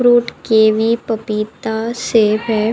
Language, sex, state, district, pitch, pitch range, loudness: Hindi, female, Uttar Pradesh, Budaun, 220 Hz, 215-230 Hz, -16 LUFS